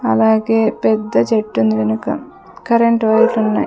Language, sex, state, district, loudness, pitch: Telugu, female, Andhra Pradesh, Sri Satya Sai, -15 LUFS, 220 Hz